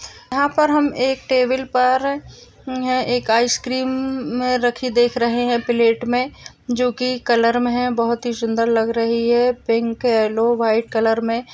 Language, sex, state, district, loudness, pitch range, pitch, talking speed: Hindi, female, Maharashtra, Solapur, -19 LUFS, 230-255 Hz, 245 Hz, 140 wpm